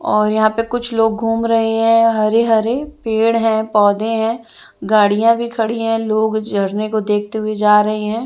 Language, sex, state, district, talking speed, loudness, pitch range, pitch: Hindi, female, Chandigarh, Chandigarh, 190 wpm, -16 LUFS, 215-225 Hz, 220 Hz